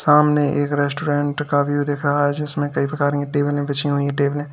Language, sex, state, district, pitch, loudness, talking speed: Hindi, male, Uttar Pradesh, Lalitpur, 145 Hz, -20 LUFS, 240 wpm